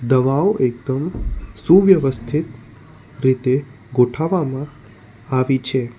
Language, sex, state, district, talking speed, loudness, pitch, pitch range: Gujarati, male, Gujarat, Valsad, 70 wpm, -18 LUFS, 130 Hz, 120-145 Hz